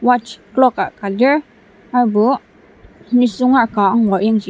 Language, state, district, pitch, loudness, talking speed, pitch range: Ao, Nagaland, Dimapur, 235 Hz, -15 LUFS, 135 wpm, 215-250 Hz